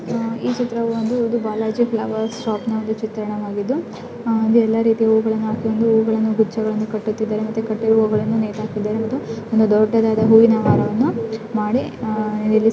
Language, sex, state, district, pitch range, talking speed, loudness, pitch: Kannada, female, Karnataka, Shimoga, 215-225 Hz, 120 wpm, -19 LUFS, 220 Hz